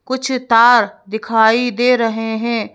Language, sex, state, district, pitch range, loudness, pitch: Hindi, female, Madhya Pradesh, Bhopal, 220-245 Hz, -14 LUFS, 230 Hz